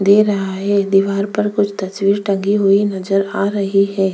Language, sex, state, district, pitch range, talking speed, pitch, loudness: Hindi, female, Chhattisgarh, Korba, 195-205 Hz, 190 wpm, 200 Hz, -16 LUFS